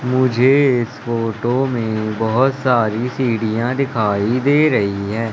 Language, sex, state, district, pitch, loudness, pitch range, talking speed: Hindi, male, Madhya Pradesh, Umaria, 120 Hz, -17 LUFS, 110-130 Hz, 125 wpm